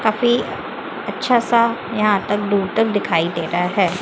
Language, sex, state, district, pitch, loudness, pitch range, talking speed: Hindi, female, Chhattisgarh, Raipur, 205 Hz, -19 LUFS, 185-230 Hz, 165 wpm